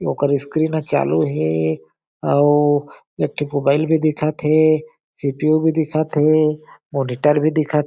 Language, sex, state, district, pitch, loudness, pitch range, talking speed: Chhattisgarhi, male, Chhattisgarh, Jashpur, 150 Hz, -18 LUFS, 145-155 Hz, 145 wpm